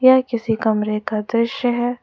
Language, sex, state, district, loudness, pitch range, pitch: Hindi, female, Jharkhand, Ranchi, -19 LUFS, 220-245 Hz, 230 Hz